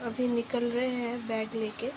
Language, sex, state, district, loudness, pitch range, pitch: Hindi, female, Uttar Pradesh, Ghazipur, -31 LUFS, 230-245 Hz, 240 Hz